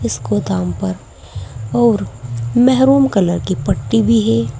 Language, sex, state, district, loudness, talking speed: Hindi, female, Uttar Pradesh, Saharanpur, -15 LUFS, 130 wpm